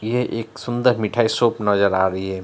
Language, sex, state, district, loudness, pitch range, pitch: Hindi, male, Bihar, Araria, -20 LUFS, 100-120 Hz, 110 Hz